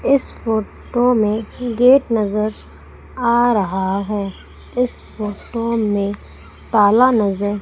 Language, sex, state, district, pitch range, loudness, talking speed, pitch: Hindi, female, Madhya Pradesh, Umaria, 205-240 Hz, -18 LUFS, 100 wpm, 220 Hz